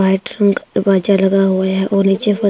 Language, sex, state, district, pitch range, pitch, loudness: Hindi, female, Himachal Pradesh, Shimla, 190-200 Hz, 195 Hz, -14 LUFS